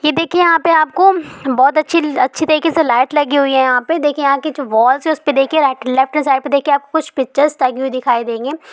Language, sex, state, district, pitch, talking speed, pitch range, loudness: Hindi, female, Bihar, East Champaran, 285 Hz, 255 wpm, 265-315 Hz, -14 LUFS